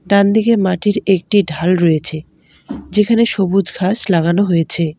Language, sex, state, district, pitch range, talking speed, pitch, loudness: Bengali, female, West Bengal, Alipurduar, 170-205 Hz, 120 wpm, 190 Hz, -14 LUFS